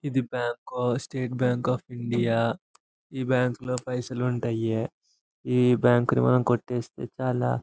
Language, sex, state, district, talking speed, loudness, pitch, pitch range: Telugu, male, Andhra Pradesh, Anantapur, 140 wpm, -26 LUFS, 125 Hz, 120-125 Hz